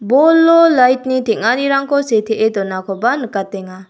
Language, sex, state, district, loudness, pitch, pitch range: Garo, female, Meghalaya, South Garo Hills, -14 LUFS, 240 Hz, 200-275 Hz